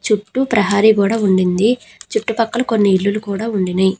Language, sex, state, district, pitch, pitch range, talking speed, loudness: Telugu, female, Telangana, Hyderabad, 210 Hz, 200-225 Hz, 135 wpm, -16 LUFS